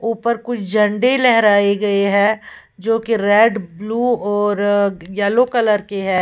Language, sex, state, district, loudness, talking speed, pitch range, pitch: Hindi, female, Uttar Pradesh, Lalitpur, -16 LUFS, 135 wpm, 200-230 Hz, 210 Hz